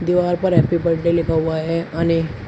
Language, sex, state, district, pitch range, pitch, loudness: Hindi, male, Uttar Pradesh, Shamli, 160-170 Hz, 165 Hz, -18 LUFS